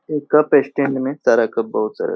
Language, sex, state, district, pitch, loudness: Hindi, male, Bihar, Saharsa, 150 Hz, -17 LUFS